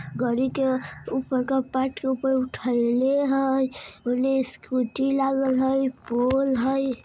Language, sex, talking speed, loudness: Bhojpuri, male, 130 wpm, -24 LUFS